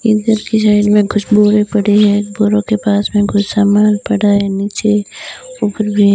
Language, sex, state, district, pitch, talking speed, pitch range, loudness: Hindi, female, Rajasthan, Bikaner, 210 Hz, 195 wpm, 205-210 Hz, -13 LUFS